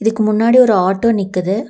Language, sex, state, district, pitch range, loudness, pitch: Tamil, female, Tamil Nadu, Nilgiris, 195-230 Hz, -13 LUFS, 215 Hz